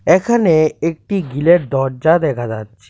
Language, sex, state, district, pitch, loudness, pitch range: Bengali, male, Tripura, West Tripura, 155 Hz, -15 LUFS, 135-175 Hz